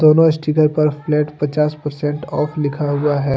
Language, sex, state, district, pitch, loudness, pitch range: Hindi, male, Jharkhand, Deoghar, 150 Hz, -17 LUFS, 145-155 Hz